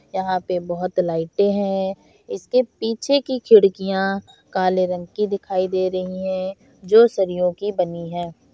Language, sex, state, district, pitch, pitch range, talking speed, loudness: Hindi, female, Bihar, Bhagalpur, 190 Hz, 180-200 Hz, 150 wpm, -20 LUFS